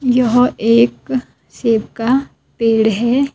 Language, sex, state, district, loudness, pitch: Hindi, female, Himachal Pradesh, Shimla, -15 LUFS, 230 Hz